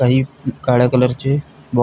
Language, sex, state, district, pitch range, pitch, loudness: Marathi, male, Maharashtra, Pune, 125-135 Hz, 130 Hz, -17 LUFS